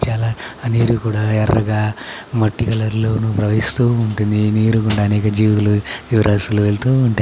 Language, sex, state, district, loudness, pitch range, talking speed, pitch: Telugu, male, Andhra Pradesh, Chittoor, -17 LUFS, 105-115 Hz, 140 wpm, 110 Hz